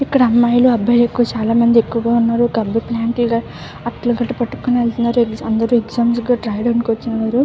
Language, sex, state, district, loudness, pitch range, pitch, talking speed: Telugu, female, Andhra Pradesh, Visakhapatnam, -16 LUFS, 230-240 Hz, 235 Hz, 160 wpm